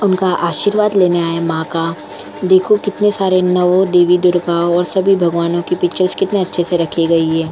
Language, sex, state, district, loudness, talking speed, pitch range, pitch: Hindi, female, Goa, North and South Goa, -14 LUFS, 190 wpm, 170-185 Hz, 180 Hz